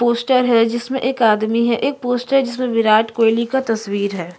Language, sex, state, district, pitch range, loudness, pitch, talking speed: Hindi, female, Chhattisgarh, Korba, 225-255 Hz, -17 LUFS, 235 Hz, 205 wpm